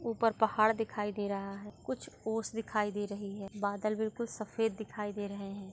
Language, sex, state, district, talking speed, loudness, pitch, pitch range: Hindi, female, Maharashtra, Nagpur, 200 wpm, -35 LUFS, 210 Hz, 205-225 Hz